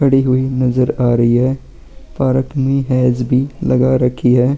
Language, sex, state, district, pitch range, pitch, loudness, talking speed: Hindi, male, Chhattisgarh, Sukma, 125-135 Hz, 130 Hz, -15 LUFS, 185 wpm